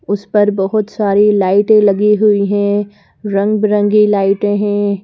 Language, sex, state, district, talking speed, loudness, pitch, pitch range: Hindi, female, Madhya Pradesh, Bhopal, 145 wpm, -13 LUFS, 205 Hz, 200-210 Hz